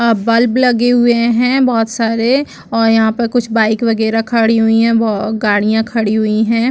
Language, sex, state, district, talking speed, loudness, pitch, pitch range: Hindi, female, Chhattisgarh, Bastar, 185 wpm, -13 LUFS, 230 Hz, 220-235 Hz